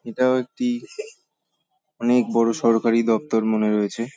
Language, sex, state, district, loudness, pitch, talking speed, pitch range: Bengali, male, West Bengal, Paschim Medinipur, -21 LUFS, 115 Hz, 115 wpm, 115-140 Hz